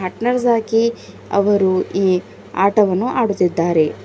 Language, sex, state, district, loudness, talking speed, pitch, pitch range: Kannada, female, Karnataka, Bidar, -17 LUFS, 75 wpm, 195 Hz, 185-225 Hz